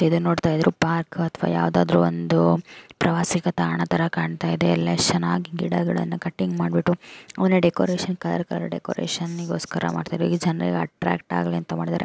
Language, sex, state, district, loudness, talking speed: Kannada, female, Karnataka, Chamarajanagar, -23 LUFS, 150 wpm